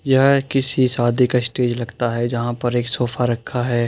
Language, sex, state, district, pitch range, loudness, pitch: Hindi, male, Uttar Pradesh, Muzaffarnagar, 120-130 Hz, -18 LUFS, 125 Hz